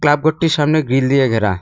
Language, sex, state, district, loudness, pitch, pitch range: Bengali, male, West Bengal, Cooch Behar, -15 LUFS, 145 Hz, 130-155 Hz